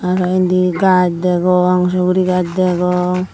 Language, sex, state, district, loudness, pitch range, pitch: Chakma, female, Tripura, Unakoti, -14 LUFS, 180-185 Hz, 180 Hz